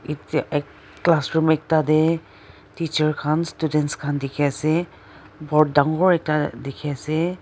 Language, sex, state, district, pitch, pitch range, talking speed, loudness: Nagamese, female, Nagaland, Dimapur, 155 Hz, 145-160 Hz, 135 wpm, -21 LUFS